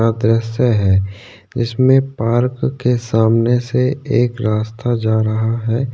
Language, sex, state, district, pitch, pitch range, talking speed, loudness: Hindi, male, Maharashtra, Chandrapur, 115 Hz, 110-125 Hz, 140 wpm, -16 LUFS